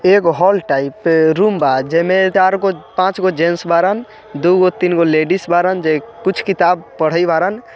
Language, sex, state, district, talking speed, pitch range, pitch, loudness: Bajjika, male, Bihar, Vaishali, 140 wpm, 165-190 Hz, 180 Hz, -14 LUFS